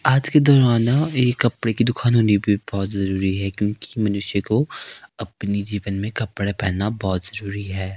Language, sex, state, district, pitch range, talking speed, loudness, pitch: Hindi, male, Himachal Pradesh, Shimla, 100-120 Hz, 175 wpm, -21 LUFS, 105 Hz